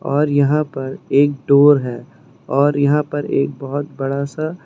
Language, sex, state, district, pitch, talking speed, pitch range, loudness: Hindi, male, Uttar Pradesh, Lucknow, 140 Hz, 170 wpm, 135-145 Hz, -17 LUFS